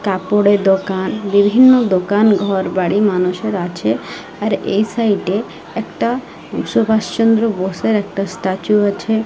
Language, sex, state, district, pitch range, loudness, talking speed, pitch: Bengali, female, Odisha, Malkangiri, 190-220 Hz, -16 LUFS, 110 wpm, 205 Hz